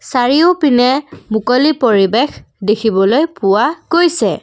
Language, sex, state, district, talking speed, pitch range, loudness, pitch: Assamese, female, Assam, Kamrup Metropolitan, 80 wpm, 210-300 Hz, -13 LUFS, 250 Hz